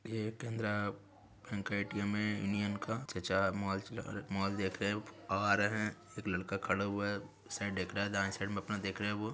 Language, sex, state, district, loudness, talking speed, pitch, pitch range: Hindi, male, Bihar, Gaya, -37 LUFS, 250 wpm, 100 Hz, 100-105 Hz